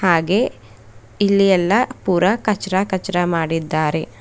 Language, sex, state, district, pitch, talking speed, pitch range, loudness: Kannada, female, Karnataka, Bidar, 180 Hz, 100 wpm, 160-195 Hz, -18 LUFS